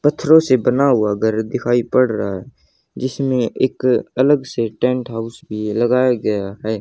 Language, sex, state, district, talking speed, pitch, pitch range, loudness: Hindi, male, Haryana, Jhajjar, 160 wpm, 125 Hz, 110-130 Hz, -17 LUFS